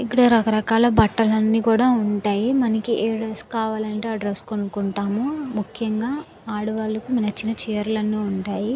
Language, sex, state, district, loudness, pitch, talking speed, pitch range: Telugu, female, Andhra Pradesh, Visakhapatnam, -22 LUFS, 220 Hz, 130 wpm, 210-230 Hz